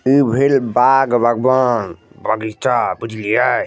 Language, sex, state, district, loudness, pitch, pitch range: Maithili, male, Bihar, Madhepura, -16 LUFS, 120 Hz, 115-135 Hz